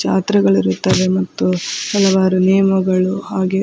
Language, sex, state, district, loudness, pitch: Kannada, female, Karnataka, Dakshina Kannada, -15 LUFS, 185 Hz